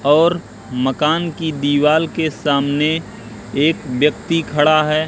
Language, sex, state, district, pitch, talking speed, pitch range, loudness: Hindi, male, Madhya Pradesh, Katni, 150 Hz, 120 wpm, 140-160 Hz, -17 LUFS